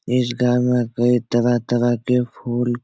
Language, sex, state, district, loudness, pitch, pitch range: Hindi, male, Bihar, Supaul, -19 LUFS, 120 Hz, 120-125 Hz